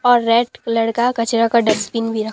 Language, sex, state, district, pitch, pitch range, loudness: Hindi, male, Bihar, Katihar, 230 Hz, 225-235 Hz, -17 LUFS